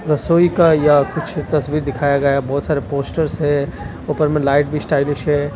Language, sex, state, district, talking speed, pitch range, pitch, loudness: Hindi, male, Delhi, New Delhi, 185 wpm, 140-150 Hz, 145 Hz, -17 LUFS